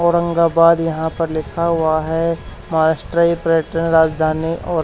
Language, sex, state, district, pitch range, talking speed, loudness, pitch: Hindi, male, Haryana, Charkhi Dadri, 160-170 Hz, 125 wpm, -17 LUFS, 165 Hz